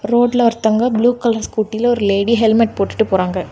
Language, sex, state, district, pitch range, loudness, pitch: Tamil, female, Tamil Nadu, Kanyakumari, 205-235 Hz, -15 LUFS, 225 Hz